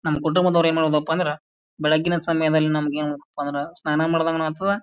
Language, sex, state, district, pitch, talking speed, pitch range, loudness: Kannada, male, Karnataka, Bijapur, 155 Hz, 150 wpm, 150-165 Hz, -22 LUFS